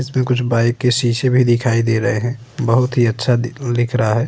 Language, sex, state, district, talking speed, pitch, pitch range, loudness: Hindi, male, Uttar Pradesh, Budaun, 240 wpm, 120 Hz, 115-125 Hz, -17 LUFS